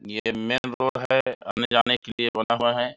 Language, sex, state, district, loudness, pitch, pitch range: Hindi, male, Chhattisgarh, Bilaspur, -24 LUFS, 120 Hz, 115-125 Hz